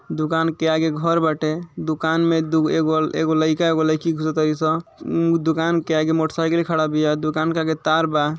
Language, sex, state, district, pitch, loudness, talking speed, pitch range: Bhojpuri, male, Uttar Pradesh, Ghazipur, 160 Hz, -20 LUFS, 195 wpm, 155-165 Hz